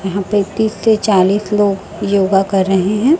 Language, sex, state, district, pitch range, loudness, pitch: Hindi, female, Chhattisgarh, Raipur, 195-210 Hz, -14 LUFS, 200 Hz